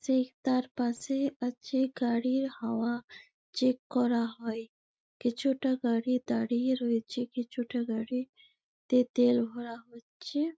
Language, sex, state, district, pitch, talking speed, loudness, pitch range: Bengali, female, West Bengal, Malda, 245 Hz, 110 wpm, -31 LUFS, 235-260 Hz